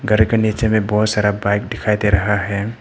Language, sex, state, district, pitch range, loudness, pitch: Hindi, male, Arunachal Pradesh, Papum Pare, 105-110 Hz, -17 LUFS, 105 Hz